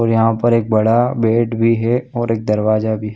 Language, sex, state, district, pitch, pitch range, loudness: Hindi, male, Chhattisgarh, Bilaspur, 115 Hz, 110-115 Hz, -16 LUFS